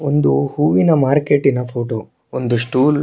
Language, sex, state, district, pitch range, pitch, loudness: Kannada, male, Karnataka, Shimoga, 125-145 Hz, 140 Hz, -16 LUFS